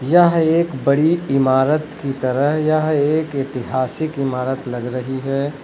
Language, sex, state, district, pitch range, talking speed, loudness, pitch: Hindi, male, Uttar Pradesh, Lucknow, 130-155 Hz, 140 wpm, -18 LUFS, 140 Hz